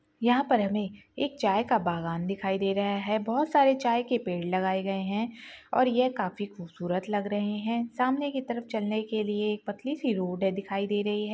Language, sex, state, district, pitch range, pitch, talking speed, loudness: Hindi, female, Chhattisgarh, Balrampur, 195-240 Hz, 210 Hz, 215 wpm, -29 LUFS